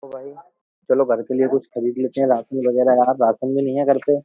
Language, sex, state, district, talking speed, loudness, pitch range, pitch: Hindi, male, Uttar Pradesh, Jyotiba Phule Nagar, 255 wpm, -19 LUFS, 125-140 Hz, 130 Hz